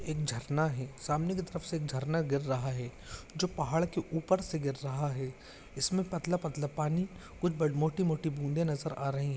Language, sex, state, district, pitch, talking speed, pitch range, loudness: Hindi, male, Maharashtra, Pune, 150 Hz, 190 wpm, 140-170 Hz, -34 LUFS